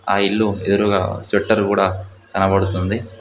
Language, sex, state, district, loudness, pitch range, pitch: Telugu, male, Telangana, Mahabubabad, -18 LUFS, 95-105 Hz, 100 Hz